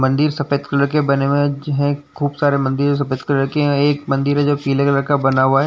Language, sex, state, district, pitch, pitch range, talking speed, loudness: Hindi, male, Uttar Pradesh, Jyotiba Phule Nagar, 140 Hz, 140-145 Hz, 265 wpm, -17 LUFS